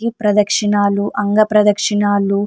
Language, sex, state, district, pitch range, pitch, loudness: Telugu, female, Andhra Pradesh, Anantapur, 205-210 Hz, 205 Hz, -15 LUFS